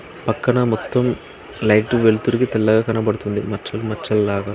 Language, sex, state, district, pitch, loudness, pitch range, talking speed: Telugu, male, Andhra Pradesh, Srikakulam, 110 Hz, -19 LUFS, 105-120 Hz, 105 wpm